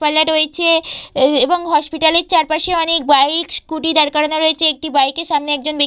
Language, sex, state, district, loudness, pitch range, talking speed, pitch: Bengali, female, West Bengal, Purulia, -14 LUFS, 295-325 Hz, 185 wpm, 310 Hz